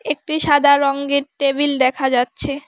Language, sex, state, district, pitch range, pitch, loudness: Bengali, female, West Bengal, Alipurduar, 275-290 Hz, 280 Hz, -17 LUFS